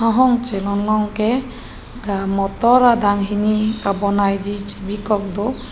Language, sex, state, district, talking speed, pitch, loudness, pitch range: Karbi, female, Assam, Karbi Anglong, 85 wpm, 210 Hz, -18 LUFS, 200-230 Hz